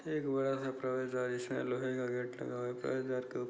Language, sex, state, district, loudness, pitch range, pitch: Hindi, male, Chhattisgarh, Bastar, -37 LUFS, 125-130 Hz, 130 Hz